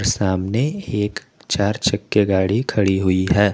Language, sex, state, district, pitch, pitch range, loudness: Hindi, male, Jharkhand, Garhwa, 105 Hz, 95-115 Hz, -19 LUFS